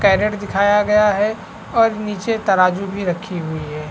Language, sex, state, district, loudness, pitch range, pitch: Hindi, male, Chhattisgarh, Rajnandgaon, -18 LUFS, 185-210 Hz, 200 Hz